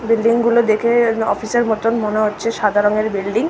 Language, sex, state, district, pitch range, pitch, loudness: Bengali, female, West Bengal, North 24 Parganas, 215-230 Hz, 225 Hz, -16 LUFS